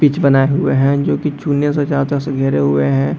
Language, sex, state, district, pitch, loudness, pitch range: Hindi, male, Bihar, Madhepura, 140 Hz, -15 LUFS, 135-145 Hz